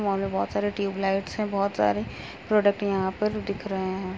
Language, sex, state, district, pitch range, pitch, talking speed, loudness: Hindi, female, Uttar Pradesh, Etah, 190-205 Hz, 195 Hz, 215 wpm, -26 LUFS